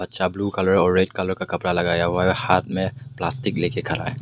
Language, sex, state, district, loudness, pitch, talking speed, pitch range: Hindi, male, Meghalaya, West Garo Hills, -22 LUFS, 95 Hz, 225 wpm, 90-110 Hz